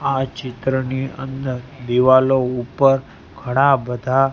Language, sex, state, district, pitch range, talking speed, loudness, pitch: Gujarati, male, Gujarat, Gandhinagar, 125-135 Hz, 95 wpm, -18 LUFS, 130 Hz